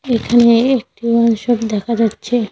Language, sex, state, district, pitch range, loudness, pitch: Bengali, female, West Bengal, Cooch Behar, 225-240 Hz, -15 LUFS, 235 Hz